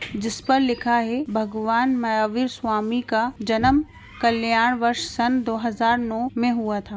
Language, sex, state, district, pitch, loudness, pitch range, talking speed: Hindi, female, Bihar, Muzaffarpur, 235 Hz, -22 LUFS, 225-245 Hz, 155 wpm